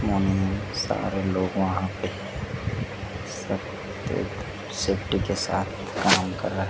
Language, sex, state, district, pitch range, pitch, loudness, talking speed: Hindi, male, Madhya Pradesh, Dhar, 95-100 Hz, 95 Hz, -27 LUFS, 100 wpm